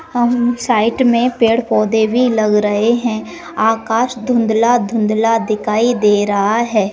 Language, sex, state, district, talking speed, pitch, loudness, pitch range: Hindi, female, Maharashtra, Sindhudurg, 130 wpm, 225 Hz, -14 LUFS, 215-240 Hz